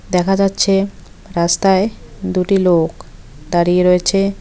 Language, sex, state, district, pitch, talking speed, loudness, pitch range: Bengali, female, West Bengal, Cooch Behar, 185 Hz, 95 wpm, -15 LUFS, 175-195 Hz